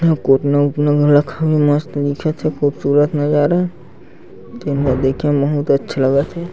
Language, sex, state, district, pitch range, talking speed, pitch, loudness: Chhattisgarhi, male, Chhattisgarh, Sarguja, 140-155 Hz, 175 wpm, 145 Hz, -16 LUFS